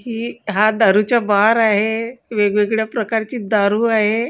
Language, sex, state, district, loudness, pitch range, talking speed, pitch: Marathi, female, Maharashtra, Gondia, -17 LUFS, 210-230 Hz, 125 wpm, 220 Hz